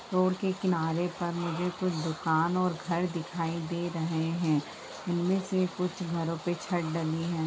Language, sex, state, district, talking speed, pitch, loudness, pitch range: Hindi, female, Bihar, Lakhisarai, 170 wpm, 170 Hz, -31 LUFS, 165-180 Hz